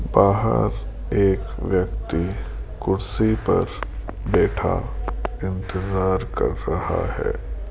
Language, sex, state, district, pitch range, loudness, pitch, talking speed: Hindi, male, Rajasthan, Jaipur, 95-100 Hz, -23 LUFS, 95 Hz, 80 wpm